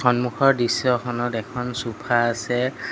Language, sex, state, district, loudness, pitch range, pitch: Assamese, male, Assam, Sonitpur, -22 LUFS, 120-125 Hz, 120 Hz